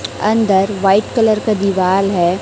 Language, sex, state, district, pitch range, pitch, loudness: Hindi, female, Chhattisgarh, Raipur, 190-215 Hz, 195 Hz, -14 LUFS